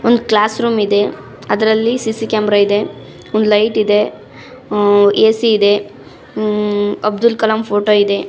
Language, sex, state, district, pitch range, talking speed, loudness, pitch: Kannada, female, Karnataka, Raichur, 205-220 Hz, 135 wpm, -14 LUFS, 210 Hz